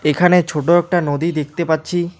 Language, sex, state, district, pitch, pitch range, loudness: Bengali, male, West Bengal, Alipurduar, 170 Hz, 150-175 Hz, -17 LUFS